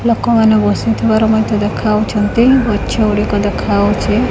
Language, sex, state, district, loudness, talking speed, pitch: Odia, female, Odisha, Khordha, -13 LUFS, 85 wpm, 215 Hz